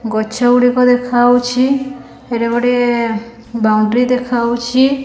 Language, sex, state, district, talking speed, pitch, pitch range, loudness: Odia, female, Odisha, Khordha, 95 wpm, 245 Hz, 235-250 Hz, -14 LUFS